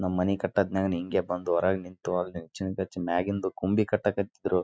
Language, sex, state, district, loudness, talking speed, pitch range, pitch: Kannada, male, Karnataka, Raichur, -29 LUFS, 130 wpm, 90-100 Hz, 95 Hz